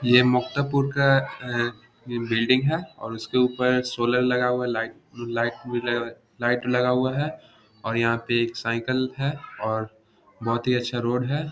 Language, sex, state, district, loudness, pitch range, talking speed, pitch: Hindi, male, Bihar, Samastipur, -24 LUFS, 115-130 Hz, 180 wpm, 125 Hz